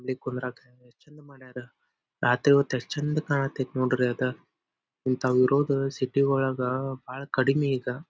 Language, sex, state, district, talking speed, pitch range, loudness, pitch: Kannada, male, Karnataka, Dharwad, 140 wpm, 125-140 Hz, -26 LUFS, 130 Hz